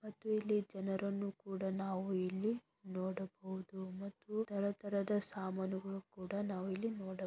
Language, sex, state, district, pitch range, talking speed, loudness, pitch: Kannada, female, Karnataka, Belgaum, 190-205 Hz, 130 wpm, -41 LUFS, 195 Hz